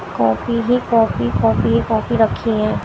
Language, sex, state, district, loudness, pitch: Hindi, female, Haryana, Jhajjar, -17 LUFS, 215 Hz